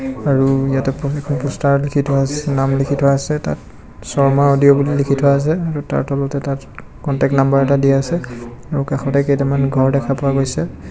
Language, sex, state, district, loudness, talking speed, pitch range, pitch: Assamese, male, Assam, Kamrup Metropolitan, -16 LUFS, 175 wpm, 135-140 Hz, 140 Hz